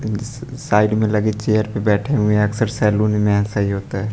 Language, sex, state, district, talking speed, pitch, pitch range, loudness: Hindi, male, Bihar, West Champaran, 230 wpm, 105 Hz, 105-110 Hz, -18 LUFS